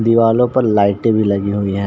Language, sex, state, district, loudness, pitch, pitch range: Hindi, male, Uttar Pradesh, Ghazipur, -15 LUFS, 110 Hz, 100-115 Hz